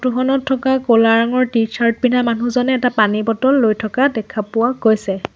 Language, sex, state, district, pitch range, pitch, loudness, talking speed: Assamese, female, Assam, Sonitpur, 225-255 Hz, 240 Hz, -16 LUFS, 190 wpm